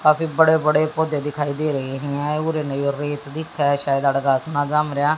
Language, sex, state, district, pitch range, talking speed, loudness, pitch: Hindi, female, Haryana, Jhajjar, 140-155 Hz, 105 wpm, -20 LUFS, 145 Hz